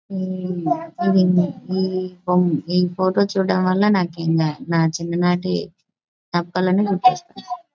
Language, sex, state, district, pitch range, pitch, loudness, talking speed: Telugu, female, Andhra Pradesh, Anantapur, 175-195 Hz, 185 Hz, -20 LUFS, 100 wpm